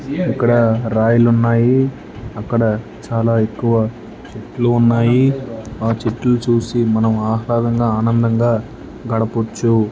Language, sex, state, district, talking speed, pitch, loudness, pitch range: Telugu, male, Karnataka, Bellary, 80 wpm, 115 Hz, -16 LUFS, 110-120 Hz